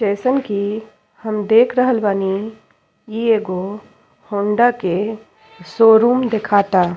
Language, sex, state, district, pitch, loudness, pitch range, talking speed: Bhojpuri, female, Uttar Pradesh, Ghazipur, 215 Hz, -17 LUFS, 200-225 Hz, 105 wpm